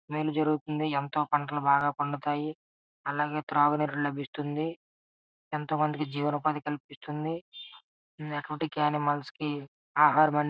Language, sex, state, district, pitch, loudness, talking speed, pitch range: Telugu, male, Andhra Pradesh, Srikakulam, 150 Hz, -30 LUFS, 110 wpm, 145-155 Hz